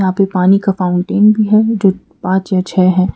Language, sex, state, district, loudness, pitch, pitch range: Hindi, female, Madhya Pradesh, Bhopal, -13 LUFS, 190 Hz, 185-200 Hz